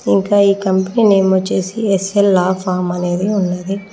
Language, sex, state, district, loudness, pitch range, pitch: Telugu, female, Telangana, Mahabubabad, -15 LUFS, 180-200 Hz, 190 Hz